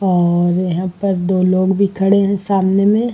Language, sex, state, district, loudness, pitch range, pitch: Hindi, female, Uttar Pradesh, Varanasi, -15 LUFS, 185-200 Hz, 190 Hz